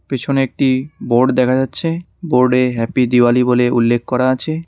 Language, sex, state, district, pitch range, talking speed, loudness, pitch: Bengali, male, West Bengal, Cooch Behar, 125-135 Hz, 165 wpm, -15 LUFS, 125 Hz